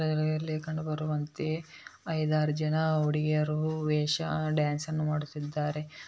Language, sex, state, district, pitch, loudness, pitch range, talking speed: Kannada, male, Karnataka, Bellary, 155 Hz, -30 LUFS, 150-155 Hz, 110 wpm